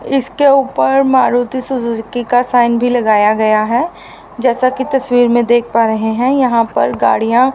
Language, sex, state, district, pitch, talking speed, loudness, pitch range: Hindi, female, Haryana, Rohtak, 245 Hz, 165 wpm, -13 LUFS, 230-260 Hz